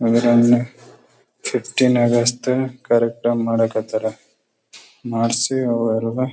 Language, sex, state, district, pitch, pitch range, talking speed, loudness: Kannada, male, Karnataka, Bellary, 120 Hz, 115-125 Hz, 55 wpm, -19 LUFS